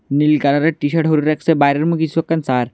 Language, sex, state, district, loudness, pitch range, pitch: Bengali, male, Tripura, West Tripura, -16 LUFS, 140-160 Hz, 150 Hz